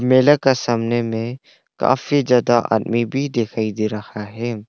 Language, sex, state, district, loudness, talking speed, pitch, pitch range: Hindi, male, Arunachal Pradesh, Longding, -19 LUFS, 155 wpm, 120 Hz, 110-130 Hz